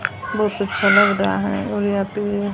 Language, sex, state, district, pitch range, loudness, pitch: Hindi, female, Haryana, Jhajjar, 190-205 Hz, -19 LUFS, 205 Hz